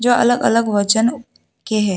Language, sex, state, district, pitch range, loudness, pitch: Hindi, female, Tripura, West Tripura, 215-245 Hz, -16 LUFS, 230 Hz